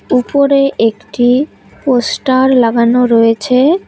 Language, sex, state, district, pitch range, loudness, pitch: Bengali, female, West Bengal, Cooch Behar, 235-275 Hz, -11 LUFS, 250 Hz